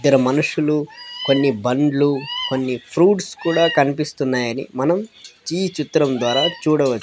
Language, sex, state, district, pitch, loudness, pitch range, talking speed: Telugu, female, Andhra Pradesh, Sri Satya Sai, 145 Hz, -19 LUFS, 135-165 Hz, 110 wpm